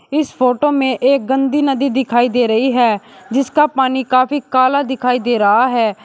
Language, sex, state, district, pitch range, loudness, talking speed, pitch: Hindi, male, Uttar Pradesh, Shamli, 245-275 Hz, -15 LUFS, 180 wpm, 260 Hz